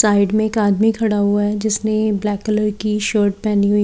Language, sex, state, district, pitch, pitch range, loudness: Hindi, female, Haryana, Rohtak, 210 Hz, 205-215 Hz, -17 LUFS